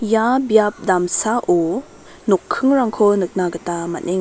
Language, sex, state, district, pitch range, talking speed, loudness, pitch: Garo, female, Meghalaya, West Garo Hills, 175-220 Hz, 100 wpm, -18 LUFS, 200 Hz